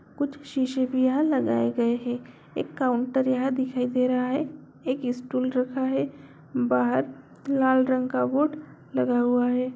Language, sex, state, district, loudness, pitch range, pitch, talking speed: Hindi, female, Bihar, Jamui, -25 LUFS, 240-265 Hz, 255 Hz, 160 wpm